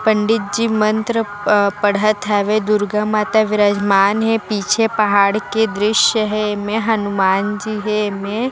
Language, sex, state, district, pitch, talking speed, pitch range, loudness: Chhattisgarhi, female, Chhattisgarh, Raigarh, 210 Hz, 140 wpm, 205-220 Hz, -16 LUFS